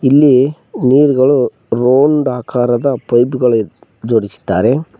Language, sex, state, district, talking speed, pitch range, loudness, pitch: Kannada, male, Karnataka, Koppal, 95 wpm, 120-140 Hz, -13 LUFS, 125 Hz